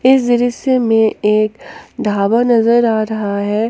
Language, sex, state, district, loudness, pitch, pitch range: Hindi, female, Jharkhand, Palamu, -14 LUFS, 225 Hz, 215-245 Hz